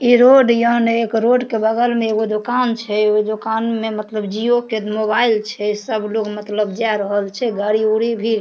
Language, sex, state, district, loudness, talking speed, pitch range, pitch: Maithili, female, Bihar, Darbhanga, -17 LUFS, 215 wpm, 215-235 Hz, 220 Hz